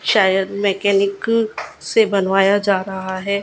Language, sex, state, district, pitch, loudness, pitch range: Hindi, female, Gujarat, Gandhinagar, 200 Hz, -17 LUFS, 195-205 Hz